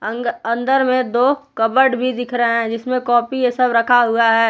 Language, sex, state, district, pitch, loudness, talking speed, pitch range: Hindi, female, Jharkhand, Palamu, 245 Hz, -16 LUFS, 225 wpm, 230-255 Hz